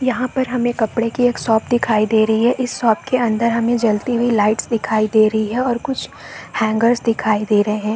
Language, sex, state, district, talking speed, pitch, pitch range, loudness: Hindi, female, Chhattisgarh, Bastar, 225 wpm, 230 Hz, 220-245 Hz, -17 LUFS